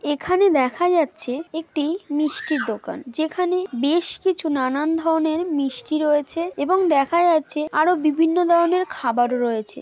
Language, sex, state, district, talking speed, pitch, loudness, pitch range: Bengali, female, West Bengal, Malda, 135 wpm, 310 Hz, -21 LUFS, 280-340 Hz